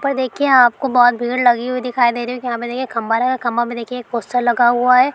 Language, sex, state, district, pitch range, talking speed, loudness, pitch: Hindi, female, Bihar, Araria, 240-255 Hz, 305 wpm, -16 LUFS, 245 Hz